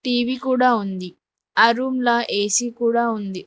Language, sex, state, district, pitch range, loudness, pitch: Telugu, female, Telangana, Mahabubabad, 205-250 Hz, -20 LUFS, 235 Hz